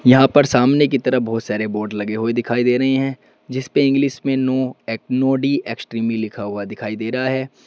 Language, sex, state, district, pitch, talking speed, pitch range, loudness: Hindi, male, Uttar Pradesh, Saharanpur, 130 Hz, 220 wpm, 115-135 Hz, -19 LUFS